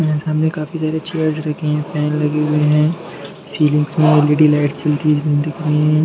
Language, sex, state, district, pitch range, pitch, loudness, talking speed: Hindi, male, Bihar, Darbhanga, 150-155 Hz, 150 Hz, -16 LUFS, 200 wpm